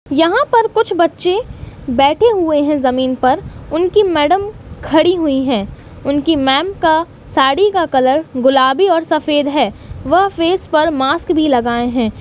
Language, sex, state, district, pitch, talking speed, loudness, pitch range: Hindi, female, Uttar Pradesh, Hamirpur, 310 Hz, 150 wpm, -14 LUFS, 270-355 Hz